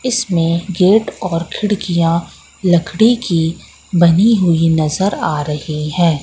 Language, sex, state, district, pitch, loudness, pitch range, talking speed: Hindi, female, Madhya Pradesh, Katni, 175 Hz, -15 LUFS, 165-195 Hz, 115 wpm